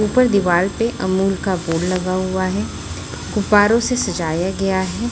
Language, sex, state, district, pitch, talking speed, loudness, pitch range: Hindi, female, Chhattisgarh, Raipur, 190 Hz, 165 wpm, -18 LUFS, 185-210 Hz